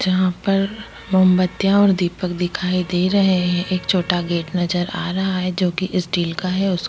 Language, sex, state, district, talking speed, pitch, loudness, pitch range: Hindi, female, Chhattisgarh, Kabirdham, 200 wpm, 185 Hz, -19 LUFS, 180-190 Hz